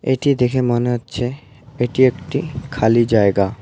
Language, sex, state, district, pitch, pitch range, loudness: Bengali, male, West Bengal, Alipurduar, 125 Hz, 115-130 Hz, -18 LUFS